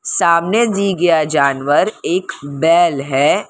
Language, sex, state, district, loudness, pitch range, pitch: Hindi, female, Maharashtra, Mumbai Suburban, -15 LUFS, 140-200 Hz, 170 Hz